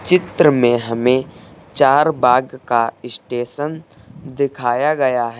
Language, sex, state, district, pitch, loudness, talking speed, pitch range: Hindi, male, Uttar Pradesh, Lucknow, 130 Hz, -17 LUFS, 100 wpm, 120-150 Hz